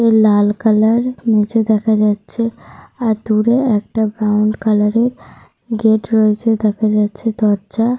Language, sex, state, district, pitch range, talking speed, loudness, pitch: Bengali, female, Jharkhand, Sahebganj, 210-225 Hz, 120 wpm, -15 LUFS, 220 Hz